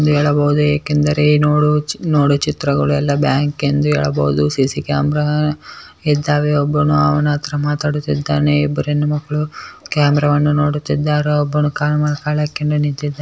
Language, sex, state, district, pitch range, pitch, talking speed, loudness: Kannada, male, Karnataka, Bellary, 145-150 Hz, 150 Hz, 135 wpm, -16 LUFS